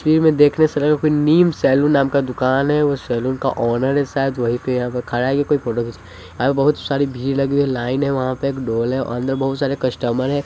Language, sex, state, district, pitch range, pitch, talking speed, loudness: Hindi, male, Bihar, Sitamarhi, 125-145 Hz, 135 Hz, 270 wpm, -18 LUFS